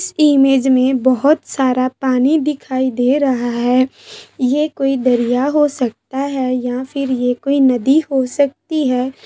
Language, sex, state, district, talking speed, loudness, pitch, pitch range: Hindi, female, Bihar, Saharsa, 155 wpm, -16 LUFS, 265 Hz, 255-280 Hz